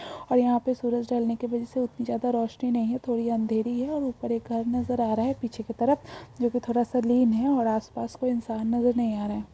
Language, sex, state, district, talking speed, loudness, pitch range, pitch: Hindi, female, Maharashtra, Solapur, 260 wpm, -27 LUFS, 230-245 Hz, 240 Hz